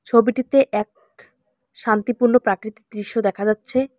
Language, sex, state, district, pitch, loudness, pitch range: Bengali, female, West Bengal, Alipurduar, 230 Hz, -20 LUFS, 210-255 Hz